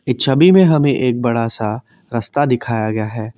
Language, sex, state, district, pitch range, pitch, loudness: Hindi, male, Assam, Kamrup Metropolitan, 115-145 Hz, 120 Hz, -15 LUFS